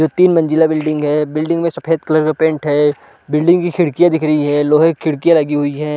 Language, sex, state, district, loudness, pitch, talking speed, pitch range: Hindi, male, Chhattisgarh, Balrampur, -14 LUFS, 155 Hz, 250 wpm, 150-165 Hz